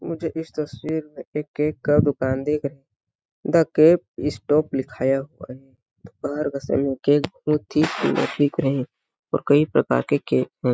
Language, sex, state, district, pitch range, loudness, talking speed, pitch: Hindi, male, Chhattisgarh, Balrampur, 130-150 Hz, -22 LUFS, 180 wpm, 145 Hz